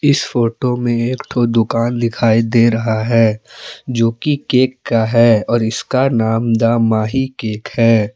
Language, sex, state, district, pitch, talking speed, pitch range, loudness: Hindi, male, Jharkhand, Palamu, 115 Hz, 160 wpm, 115-125 Hz, -15 LUFS